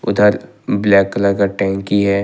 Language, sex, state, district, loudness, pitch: Hindi, male, Jharkhand, Ranchi, -15 LUFS, 100 Hz